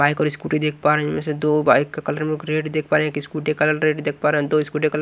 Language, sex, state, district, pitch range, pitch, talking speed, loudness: Hindi, male, Odisha, Nuapada, 150-155 Hz, 150 Hz, 360 wpm, -20 LUFS